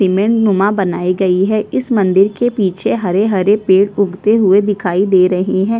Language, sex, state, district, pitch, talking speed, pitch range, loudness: Hindi, female, Chhattisgarh, Sukma, 195 Hz, 185 wpm, 185-210 Hz, -13 LUFS